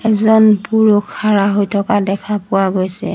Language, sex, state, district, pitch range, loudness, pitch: Assamese, female, Assam, Sonitpur, 195-215 Hz, -14 LUFS, 205 Hz